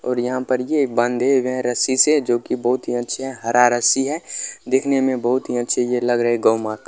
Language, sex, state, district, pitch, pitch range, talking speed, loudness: Maithili, male, Bihar, Kishanganj, 125 Hz, 120-130 Hz, 255 wpm, -19 LUFS